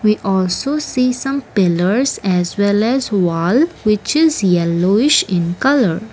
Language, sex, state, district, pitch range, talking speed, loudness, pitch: English, female, Assam, Kamrup Metropolitan, 185-265 Hz, 135 wpm, -15 LUFS, 210 Hz